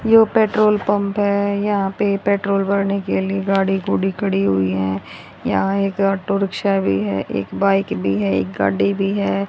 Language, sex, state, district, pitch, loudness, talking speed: Hindi, female, Haryana, Rohtak, 195 Hz, -19 LUFS, 185 wpm